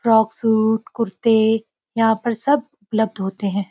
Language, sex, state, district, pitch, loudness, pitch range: Hindi, female, Uttarakhand, Uttarkashi, 225 Hz, -19 LUFS, 215-230 Hz